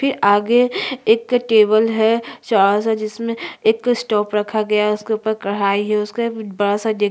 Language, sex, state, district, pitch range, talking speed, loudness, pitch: Hindi, female, Chhattisgarh, Sukma, 210-230 Hz, 175 wpm, -17 LUFS, 220 Hz